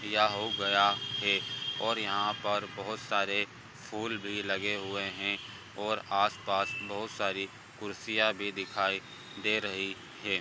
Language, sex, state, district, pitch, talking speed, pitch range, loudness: Hindi, male, Bihar, Bhagalpur, 105 Hz, 140 wpm, 100-110 Hz, -31 LUFS